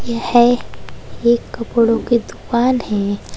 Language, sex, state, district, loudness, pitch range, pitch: Hindi, female, Uttar Pradesh, Saharanpur, -16 LUFS, 230-240 Hz, 235 Hz